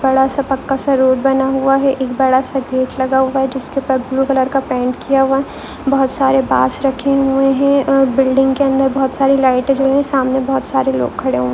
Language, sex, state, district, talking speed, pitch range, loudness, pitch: Hindi, female, Goa, North and South Goa, 235 wpm, 260-270 Hz, -15 LUFS, 270 Hz